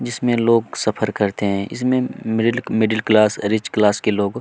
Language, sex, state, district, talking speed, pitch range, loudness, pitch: Hindi, male, Chhattisgarh, Kabirdham, 190 wpm, 105-115 Hz, -19 LUFS, 110 Hz